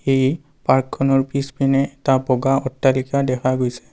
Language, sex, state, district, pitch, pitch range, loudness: Assamese, male, Assam, Kamrup Metropolitan, 135 Hz, 130-135 Hz, -19 LUFS